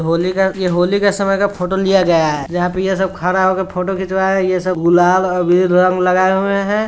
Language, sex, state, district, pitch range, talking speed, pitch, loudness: Hindi, male, Bihar, Sitamarhi, 180-190 Hz, 245 wpm, 185 Hz, -15 LUFS